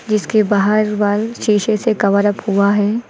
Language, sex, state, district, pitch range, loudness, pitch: Hindi, female, Uttar Pradesh, Lucknow, 205-215 Hz, -15 LUFS, 210 Hz